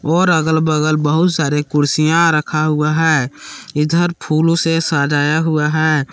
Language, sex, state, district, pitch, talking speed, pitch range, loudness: Hindi, male, Jharkhand, Palamu, 155 Hz, 145 wpm, 150-165 Hz, -15 LUFS